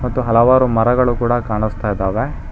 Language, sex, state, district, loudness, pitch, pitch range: Kannada, male, Karnataka, Bangalore, -16 LUFS, 120 Hz, 110-125 Hz